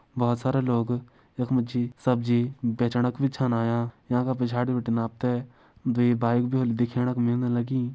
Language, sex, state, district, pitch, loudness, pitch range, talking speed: Garhwali, male, Uttarakhand, Uttarkashi, 120 Hz, -26 LUFS, 120-125 Hz, 190 wpm